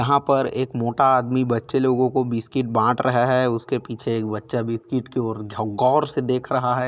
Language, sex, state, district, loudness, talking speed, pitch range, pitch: Chhattisgarhi, male, Chhattisgarh, Korba, -22 LUFS, 220 wpm, 115-130 Hz, 125 Hz